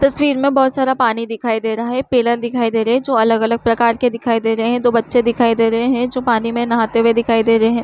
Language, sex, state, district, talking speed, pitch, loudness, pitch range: Hindi, female, Chhattisgarh, Korba, 285 wpm, 235 Hz, -15 LUFS, 230-245 Hz